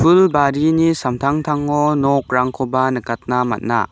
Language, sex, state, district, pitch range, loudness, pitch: Garo, male, Meghalaya, West Garo Hills, 125-150 Hz, -17 LUFS, 140 Hz